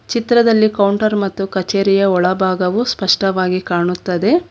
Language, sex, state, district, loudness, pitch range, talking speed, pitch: Kannada, female, Karnataka, Bangalore, -15 LUFS, 185-215 Hz, 95 wpm, 195 Hz